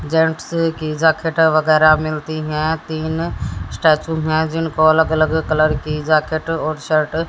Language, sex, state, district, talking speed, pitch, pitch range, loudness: Hindi, female, Haryana, Jhajjar, 150 wpm, 155 Hz, 155-160 Hz, -17 LUFS